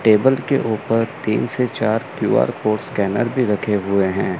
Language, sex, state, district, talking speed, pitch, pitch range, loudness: Hindi, male, Chandigarh, Chandigarh, 175 wpm, 110 Hz, 105-120 Hz, -19 LUFS